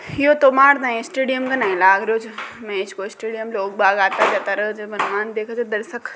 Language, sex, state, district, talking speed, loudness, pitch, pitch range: Rajasthani, female, Rajasthan, Nagaur, 95 wpm, -18 LUFS, 220 Hz, 200-250 Hz